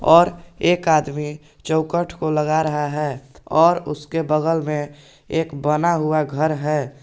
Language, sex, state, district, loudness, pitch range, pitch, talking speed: Hindi, male, Jharkhand, Garhwa, -20 LUFS, 150-160 Hz, 155 Hz, 145 wpm